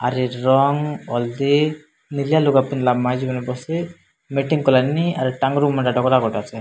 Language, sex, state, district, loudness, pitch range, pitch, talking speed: Odia, male, Odisha, Malkangiri, -19 LUFS, 125-145 Hz, 135 Hz, 75 wpm